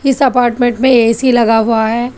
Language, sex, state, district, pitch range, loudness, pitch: Hindi, female, Telangana, Hyderabad, 230-255 Hz, -11 LUFS, 240 Hz